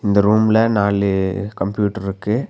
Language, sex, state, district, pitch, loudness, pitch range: Tamil, male, Tamil Nadu, Nilgiris, 100 Hz, -18 LUFS, 100-110 Hz